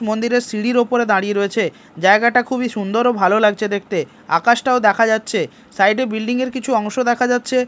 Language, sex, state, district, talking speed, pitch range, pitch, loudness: Bengali, male, Odisha, Malkangiri, 180 wpm, 210-245 Hz, 230 Hz, -17 LUFS